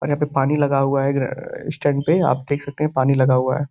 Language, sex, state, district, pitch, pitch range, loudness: Hindi, male, Uttar Pradesh, Gorakhpur, 140 Hz, 135-145 Hz, -20 LUFS